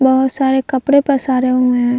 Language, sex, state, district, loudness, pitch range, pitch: Hindi, female, Bihar, Vaishali, -14 LUFS, 255-270 Hz, 265 Hz